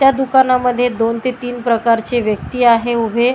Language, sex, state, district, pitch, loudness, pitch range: Marathi, female, Maharashtra, Washim, 240 Hz, -15 LUFS, 230-250 Hz